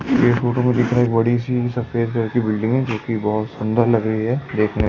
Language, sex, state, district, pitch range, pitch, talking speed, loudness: Hindi, male, Delhi, New Delhi, 110-120 Hz, 115 Hz, 280 wpm, -19 LUFS